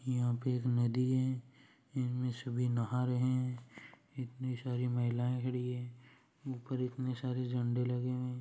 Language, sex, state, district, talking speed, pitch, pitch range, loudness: Marwari, male, Rajasthan, Churu, 155 wpm, 125 Hz, 125-130 Hz, -36 LUFS